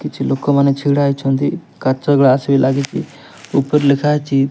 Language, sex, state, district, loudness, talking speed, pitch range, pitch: Odia, male, Odisha, Nuapada, -15 LUFS, 160 wpm, 135-145 Hz, 140 Hz